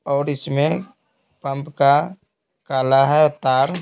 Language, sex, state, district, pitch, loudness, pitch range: Hindi, male, Bihar, Patna, 140 Hz, -18 LUFS, 135-155 Hz